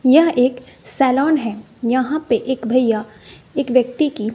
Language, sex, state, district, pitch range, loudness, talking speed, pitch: Hindi, female, Bihar, West Champaran, 235-280 Hz, -18 LUFS, 165 wpm, 255 Hz